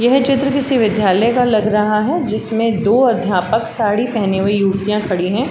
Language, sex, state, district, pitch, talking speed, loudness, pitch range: Hindi, female, Uttar Pradesh, Jalaun, 220 Hz, 185 wpm, -15 LUFS, 205-245 Hz